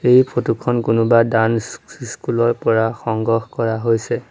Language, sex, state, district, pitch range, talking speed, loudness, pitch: Assamese, male, Assam, Sonitpur, 115-120 Hz, 165 wpm, -18 LUFS, 115 Hz